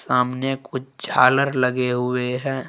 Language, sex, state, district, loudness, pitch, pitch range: Hindi, male, Jharkhand, Ranchi, -21 LUFS, 125 Hz, 125-135 Hz